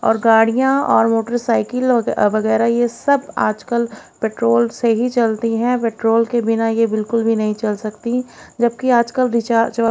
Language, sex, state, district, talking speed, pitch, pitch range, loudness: Hindi, female, Haryana, Jhajjar, 165 wpm, 230 Hz, 225-240 Hz, -17 LUFS